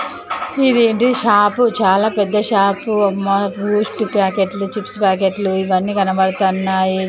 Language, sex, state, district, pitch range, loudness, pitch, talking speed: Telugu, female, Andhra Pradesh, Chittoor, 190-210 Hz, -16 LUFS, 200 Hz, 100 wpm